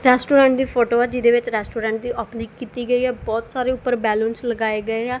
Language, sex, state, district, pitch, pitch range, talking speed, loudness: Punjabi, female, Punjab, Kapurthala, 240 Hz, 225-250 Hz, 220 wpm, -20 LUFS